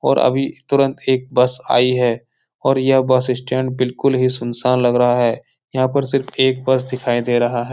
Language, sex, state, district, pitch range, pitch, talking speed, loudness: Hindi, male, Bihar, Jahanabad, 125-130 Hz, 130 Hz, 200 wpm, -17 LUFS